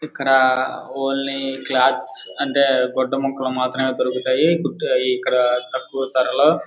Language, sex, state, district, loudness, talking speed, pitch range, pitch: Telugu, male, Andhra Pradesh, Guntur, -19 LUFS, 110 wpm, 130-135 Hz, 135 Hz